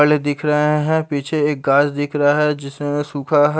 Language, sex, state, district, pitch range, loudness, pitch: Hindi, male, Haryana, Charkhi Dadri, 145-150 Hz, -18 LUFS, 145 Hz